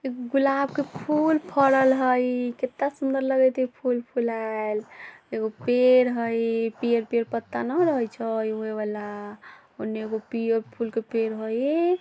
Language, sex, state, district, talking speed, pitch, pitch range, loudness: Bajjika, female, Bihar, Vaishali, 145 wpm, 240 Hz, 225-265 Hz, -25 LUFS